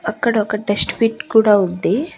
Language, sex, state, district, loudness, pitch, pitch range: Telugu, female, Andhra Pradesh, Annamaya, -16 LUFS, 215 Hz, 205-230 Hz